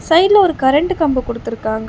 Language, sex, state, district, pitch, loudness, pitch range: Tamil, female, Tamil Nadu, Chennai, 270 Hz, -15 LUFS, 230-340 Hz